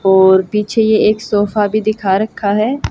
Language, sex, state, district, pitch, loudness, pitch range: Hindi, female, Haryana, Jhajjar, 210 Hz, -14 LUFS, 200-215 Hz